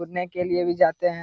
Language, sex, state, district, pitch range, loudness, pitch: Hindi, male, Bihar, Lakhisarai, 170-180 Hz, -23 LUFS, 175 Hz